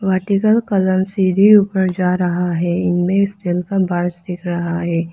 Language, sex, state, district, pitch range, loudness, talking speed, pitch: Hindi, female, Arunachal Pradesh, Lower Dibang Valley, 175-195 Hz, -16 LUFS, 130 wpm, 185 Hz